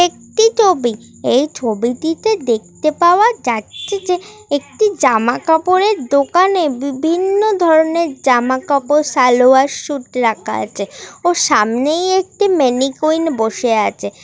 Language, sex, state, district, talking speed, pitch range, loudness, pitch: Bengali, female, West Bengal, Paschim Medinipur, 115 wpm, 250-360 Hz, -15 LUFS, 300 Hz